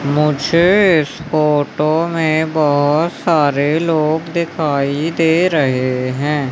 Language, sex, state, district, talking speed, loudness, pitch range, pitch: Hindi, male, Madhya Pradesh, Umaria, 100 wpm, -15 LUFS, 145-165 Hz, 155 Hz